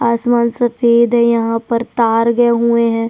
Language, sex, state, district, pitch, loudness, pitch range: Hindi, female, Chhattisgarh, Sukma, 235 Hz, -14 LUFS, 230-235 Hz